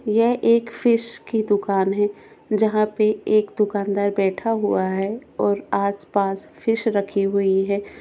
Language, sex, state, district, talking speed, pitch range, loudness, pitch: Hindi, female, Goa, North and South Goa, 140 wpm, 200-225 Hz, -21 LUFS, 205 Hz